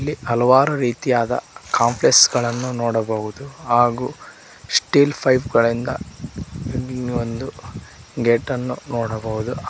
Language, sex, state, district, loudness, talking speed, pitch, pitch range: Kannada, male, Karnataka, Koppal, -19 LUFS, 80 wpm, 120 Hz, 115-130 Hz